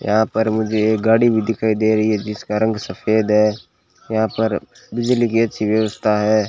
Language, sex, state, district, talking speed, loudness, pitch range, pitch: Hindi, male, Rajasthan, Bikaner, 195 wpm, -18 LUFS, 105-110 Hz, 110 Hz